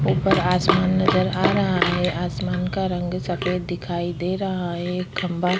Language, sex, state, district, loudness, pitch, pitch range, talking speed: Hindi, female, Chhattisgarh, Korba, -22 LUFS, 180 Hz, 175-185 Hz, 180 wpm